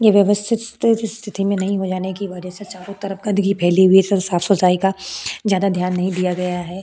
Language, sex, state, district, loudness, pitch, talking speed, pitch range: Hindi, female, Goa, North and South Goa, -18 LUFS, 195 Hz, 220 wpm, 185-200 Hz